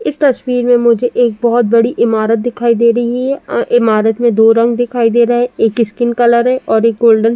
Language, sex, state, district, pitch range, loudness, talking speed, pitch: Hindi, female, Uttar Pradesh, Jalaun, 230-245 Hz, -12 LUFS, 230 wpm, 235 Hz